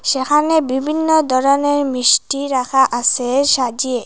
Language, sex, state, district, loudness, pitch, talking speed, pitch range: Bengali, female, Assam, Hailakandi, -15 LUFS, 270 Hz, 105 wpm, 255-290 Hz